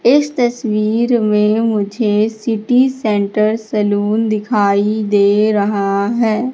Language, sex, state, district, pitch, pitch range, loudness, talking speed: Hindi, female, Madhya Pradesh, Katni, 215 Hz, 205-230 Hz, -15 LUFS, 100 wpm